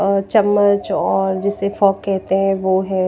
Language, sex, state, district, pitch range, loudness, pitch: Hindi, female, Himachal Pradesh, Shimla, 190-200 Hz, -17 LUFS, 195 Hz